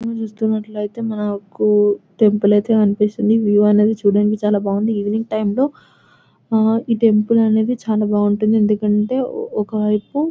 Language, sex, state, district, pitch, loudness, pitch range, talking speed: Telugu, female, Telangana, Nalgonda, 215 Hz, -17 LUFS, 210-225 Hz, 95 wpm